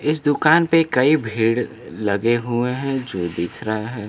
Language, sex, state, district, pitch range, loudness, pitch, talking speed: Hindi, male, Bihar, Kaimur, 110-145 Hz, -20 LUFS, 125 Hz, 175 wpm